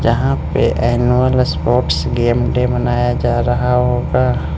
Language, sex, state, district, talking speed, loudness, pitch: Hindi, male, Arunachal Pradesh, Lower Dibang Valley, 130 wpm, -15 LUFS, 120 Hz